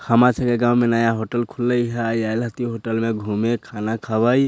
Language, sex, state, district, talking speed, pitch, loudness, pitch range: Bhojpuri, male, Bihar, Sitamarhi, 225 wpm, 115 Hz, -21 LUFS, 115-120 Hz